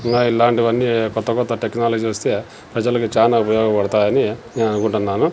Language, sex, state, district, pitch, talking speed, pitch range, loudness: Telugu, male, Andhra Pradesh, Sri Satya Sai, 115 Hz, 125 wpm, 110-120 Hz, -18 LUFS